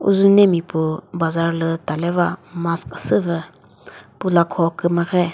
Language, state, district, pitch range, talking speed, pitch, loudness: Chakhesang, Nagaland, Dimapur, 165-180 Hz, 125 wpm, 170 Hz, -19 LUFS